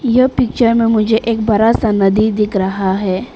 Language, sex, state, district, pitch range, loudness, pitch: Hindi, female, Arunachal Pradesh, Papum Pare, 200-230 Hz, -14 LUFS, 220 Hz